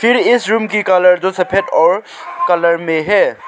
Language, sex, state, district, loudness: Hindi, male, Arunachal Pradesh, Lower Dibang Valley, -13 LUFS